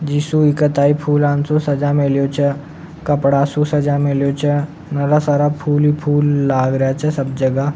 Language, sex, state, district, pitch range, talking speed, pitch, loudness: Rajasthani, male, Rajasthan, Nagaur, 140-150 Hz, 180 wpm, 145 Hz, -16 LUFS